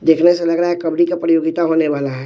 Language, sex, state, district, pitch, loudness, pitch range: Hindi, male, Bihar, West Champaran, 165 Hz, -16 LUFS, 160-170 Hz